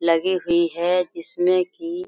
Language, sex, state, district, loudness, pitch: Hindi, female, Jharkhand, Sahebganj, -21 LUFS, 230 Hz